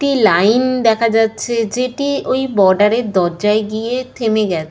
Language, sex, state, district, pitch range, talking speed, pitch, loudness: Bengali, female, West Bengal, Jalpaiguri, 210-255 Hz, 155 wpm, 225 Hz, -15 LUFS